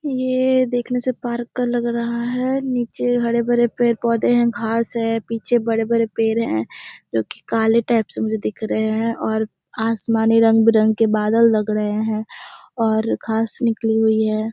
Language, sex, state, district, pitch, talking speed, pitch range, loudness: Hindi, female, Bihar, Muzaffarpur, 230 Hz, 165 wpm, 220-240 Hz, -19 LUFS